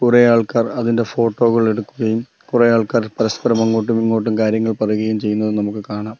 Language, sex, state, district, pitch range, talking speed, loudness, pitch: Malayalam, male, Kerala, Kollam, 110-115 Hz, 155 wpm, -17 LUFS, 115 Hz